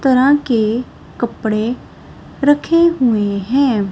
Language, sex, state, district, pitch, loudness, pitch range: Hindi, male, Punjab, Kapurthala, 255 Hz, -15 LUFS, 220-280 Hz